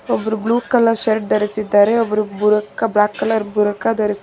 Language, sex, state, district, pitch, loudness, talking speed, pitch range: Kannada, female, Karnataka, Bangalore, 215 Hz, -17 LUFS, 140 wpm, 210-225 Hz